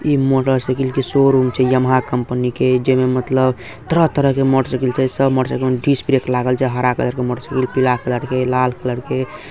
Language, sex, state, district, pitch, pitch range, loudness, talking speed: Hindi, male, Bihar, Saharsa, 130 Hz, 125-135 Hz, -17 LUFS, 210 wpm